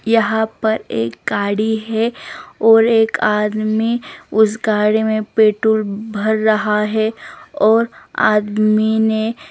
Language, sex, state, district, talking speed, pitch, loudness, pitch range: Hindi, female, Himachal Pradesh, Shimla, 115 wpm, 220 Hz, -16 LUFS, 210-220 Hz